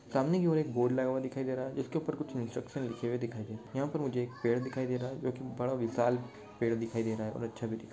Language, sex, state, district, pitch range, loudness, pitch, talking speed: Hindi, male, Maharashtra, Nagpur, 115-130 Hz, -34 LUFS, 125 Hz, 325 wpm